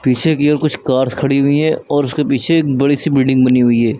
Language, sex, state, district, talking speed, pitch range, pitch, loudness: Hindi, male, Uttar Pradesh, Lucknow, 270 wpm, 130-150 Hz, 140 Hz, -14 LUFS